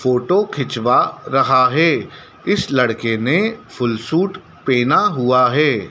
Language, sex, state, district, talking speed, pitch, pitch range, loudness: Hindi, male, Madhya Pradesh, Dhar, 120 wpm, 130 Hz, 125-175 Hz, -16 LUFS